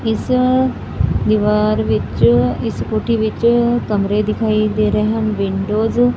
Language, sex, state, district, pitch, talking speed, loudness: Punjabi, female, Punjab, Fazilka, 210 Hz, 135 wpm, -16 LUFS